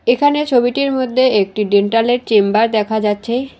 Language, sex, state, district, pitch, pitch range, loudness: Bengali, female, West Bengal, Alipurduar, 235 Hz, 210-255 Hz, -15 LUFS